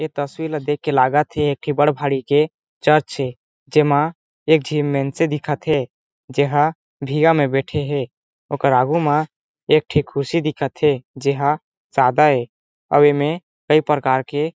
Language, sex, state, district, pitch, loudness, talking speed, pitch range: Chhattisgarhi, male, Chhattisgarh, Jashpur, 145 Hz, -19 LUFS, 180 wpm, 140-155 Hz